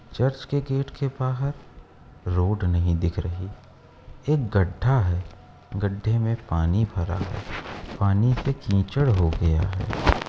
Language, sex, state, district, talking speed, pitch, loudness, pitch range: Hindi, male, Uttar Pradesh, Etah, 135 wpm, 105 Hz, -25 LUFS, 90-130 Hz